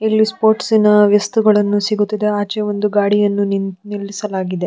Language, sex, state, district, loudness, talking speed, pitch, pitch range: Kannada, female, Karnataka, Dharwad, -15 LUFS, 130 wpm, 205 Hz, 205-215 Hz